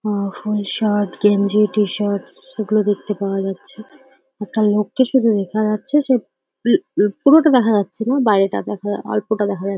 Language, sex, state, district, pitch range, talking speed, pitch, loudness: Bengali, female, West Bengal, Paschim Medinipur, 205-225 Hz, 180 wpm, 210 Hz, -17 LUFS